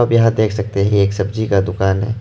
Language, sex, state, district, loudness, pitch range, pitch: Hindi, male, Arunachal Pradesh, Lower Dibang Valley, -16 LUFS, 100-110 Hz, 105 Hz